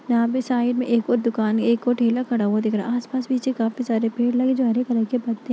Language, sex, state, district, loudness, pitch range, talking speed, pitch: Hindi, female, Uttar Pradesh, Etah, -22 LUFS, 230-250 Hz, 315 wpm, 240 Hz